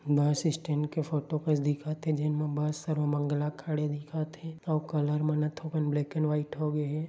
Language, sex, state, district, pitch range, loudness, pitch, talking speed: Chhattisgarhi, male, Chhattisgarh, Bilaspur, 150-155 Hz, -31 LUFS, 150 Hz, 210 wpm